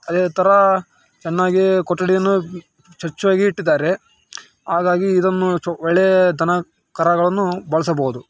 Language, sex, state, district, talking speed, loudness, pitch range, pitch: Kannada, male, Karnataka, Raichur, 85 wpm, -17 LUFS, 170-190 Hz, 180 Hz